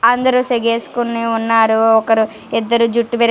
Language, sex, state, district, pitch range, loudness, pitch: Telugu, female, Telangana, Karimnagar, 225-235 Hz, -15 LUFS, 230 Hz